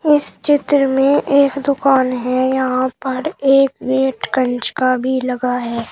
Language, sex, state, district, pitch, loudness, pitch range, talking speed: Hindi, female, Uttar Pradesh, Shamli, 265 Hz, -16 LUFS, 255-275 Hz, 150 wpm